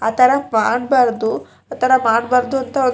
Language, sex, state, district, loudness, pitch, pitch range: Kannada, female, Karnataka, Shimoga, -16 LUFS, 250 Hz, 230-260 Hz